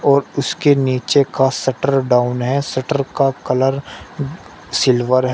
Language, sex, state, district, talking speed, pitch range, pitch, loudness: Hindi, male, Uttar Pradesh, Shamli, 135 wpm, 130-140 Hz, 135 Hz, -17 LUFS